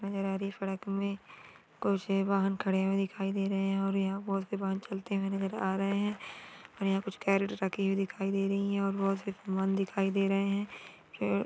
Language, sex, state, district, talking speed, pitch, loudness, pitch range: Marwari, female, Rajasthan, Churu, 225 wpm, 195 Hz, -32 LUFS, 195-200 Hz